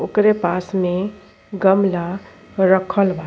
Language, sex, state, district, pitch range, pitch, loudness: Bhojpuri, female, Uttar Pradesh, Ghazipur, 180-200 Hz, 190 Hz, -18 LUFS